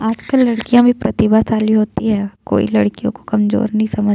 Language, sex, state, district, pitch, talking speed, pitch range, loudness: Hindi, female, Chhattisgarh, Jashpur, 215 Hz, 200 wpm, 210-225 Hz, -15 LUFS